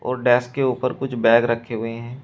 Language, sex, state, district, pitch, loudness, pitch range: Hindi, male, Uttar Pradesh, Shamli, 120 Hz, -20 LUFS, 115-130 Hz